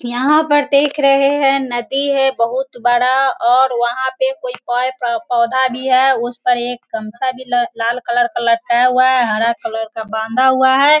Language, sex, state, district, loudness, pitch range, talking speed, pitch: Hindi, female, Bihar, Sitamarhi, -15 LUFS, 240-275 Hz, 190 wpm, 255 Hz